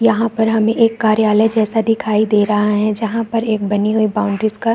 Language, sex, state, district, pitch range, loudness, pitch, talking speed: Hindi, female, Chhattisgarh, Bastar, 210-225 Hz, -15 LUFS, 220 Hz, 225 wpm